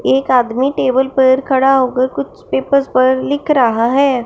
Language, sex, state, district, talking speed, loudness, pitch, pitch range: Hindi, female, Punjab, Fazilka, 170 wpm, -14 LUFS, 260 Hz, 250-270 Hz